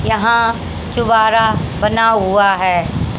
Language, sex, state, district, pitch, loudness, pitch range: Hindi, female, Haryana, Jhajjar, 220 Hz, -14 LUFS, 190-225 Hz